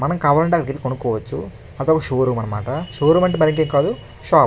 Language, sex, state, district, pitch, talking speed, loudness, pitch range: Telugu, male, Andhra Pradesh, Krishna, 140 Hz, 200 wpm, -19 LUFS, 125-160 Hz